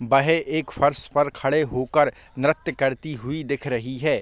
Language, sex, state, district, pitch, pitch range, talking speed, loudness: Hindi, male, Chhattisgarh, Bilaspur, 145 Hz, 130-155 Hz, 185 wpm, -22 LUFS